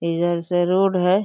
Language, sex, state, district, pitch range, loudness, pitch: Hindi, female, Uttar Pradesh, Deoria, 170-185 Hz, -20 LUFS, 175 Hz